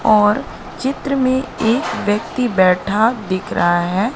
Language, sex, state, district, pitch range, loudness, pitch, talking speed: Hindi, female, Madhya Pradesh, Katni, 190-255 Hz, -17 LUFS, 215 Hz, 130 wpm